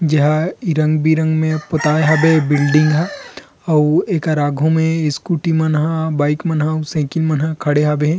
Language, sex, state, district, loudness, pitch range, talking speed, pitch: Chhattisgarhi, male, Chhattisgarh, Rajnandgaon, -16 LUFS, 150-160 Hz, 175 wpm, 155 Hz